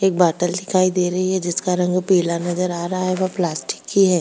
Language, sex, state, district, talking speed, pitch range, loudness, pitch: Hindi, female, Bihar, Kishanganj, 240 wpm, 175-185 Hz, -20 LUFS, 180 Hz